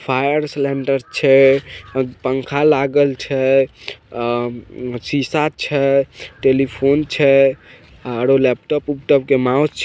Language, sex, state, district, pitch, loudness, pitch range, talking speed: Maithili, male, Bihar, Samastipur, 135 Hz, -17 LUFS, 130-140 Hz, 95 wpm